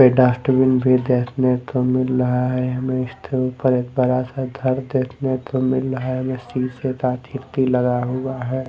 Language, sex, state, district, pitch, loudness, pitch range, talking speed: Hindi, male, Delhi, New Delhi, 130 Hz, -20 LUFS, 125-130 Hz, 185 wpm